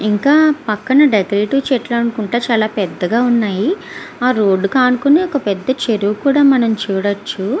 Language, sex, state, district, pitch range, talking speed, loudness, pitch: Telugu, female, Andhra Pradesh, Visakhapatnam, 205-275 Hz, 135 wpm, -15 LUFS, 235 Hz